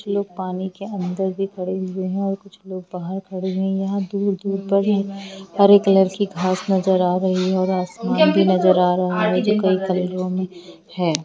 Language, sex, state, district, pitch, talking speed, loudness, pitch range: Hindi, female, Jharkhand, Jamtara, 190 Hz, 215 wpm, -20 LUFS, 185-195 Hz